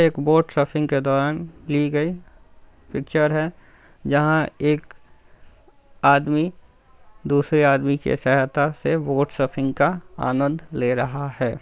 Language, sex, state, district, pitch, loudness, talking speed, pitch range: Hindi, male, Bihar, Saran, 145 Hz, -21 LUFS, 125 wpm, 140-155 Hz